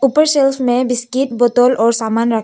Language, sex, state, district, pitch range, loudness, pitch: Hindi, female, Arunachal Pradesh, Papum Pare, 235-270 Hz, -14 LUFS, 245 Hz